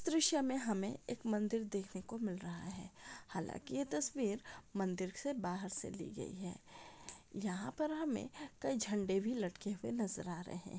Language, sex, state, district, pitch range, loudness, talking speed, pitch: Hindi, female, Maharashtra, Pune, 190-245 Hz, -41 LUFS, 185 wpm, 205 Hz